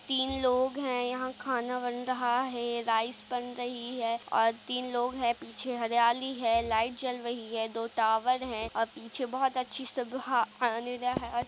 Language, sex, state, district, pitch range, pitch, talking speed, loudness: Hindi, female, Uttar Pradesh, Jalaun, 230-255 Hz, 245 Hz, 170 wpm, -31 LUFS